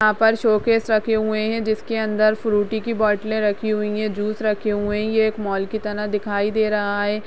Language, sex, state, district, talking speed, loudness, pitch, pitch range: Hindi, female, Uttarakhand, Tehri Garhwal, 230 wpm, -21 LUFS, 215 Hz, 210-220 Hz